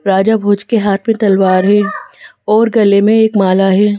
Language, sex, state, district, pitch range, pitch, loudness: Hindi, female, Madhya Pradesh, Bhopal, 195-220 Hz, 205 Hz, -11 LUFS